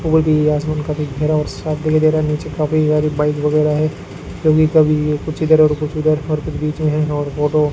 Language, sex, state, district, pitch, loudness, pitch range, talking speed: Hindi, male, Rajasthan, Bikaner, 150 Hz, -16 LUFS, 150-155 Hz, 240 wpm